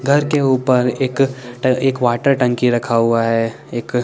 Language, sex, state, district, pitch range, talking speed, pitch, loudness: Hindi, male, Chandigarh, Chandigarh, 120-135 Hz, 180 wpm, 125 Hz, -17 LUFS